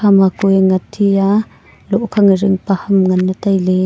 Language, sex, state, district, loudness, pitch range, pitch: Wancho, female, Arunachal Pradesh, Longding, -14 LUFS, 190-200 Hz, 195 Hz